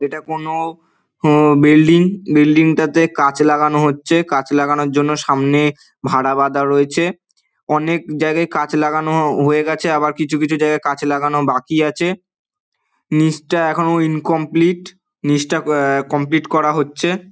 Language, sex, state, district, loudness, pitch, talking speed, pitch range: Bengali, male, West Bengal, Dakshin Dinajpur, -15 LUFS, 155 Hz, 130 wpm, 145-165 Hz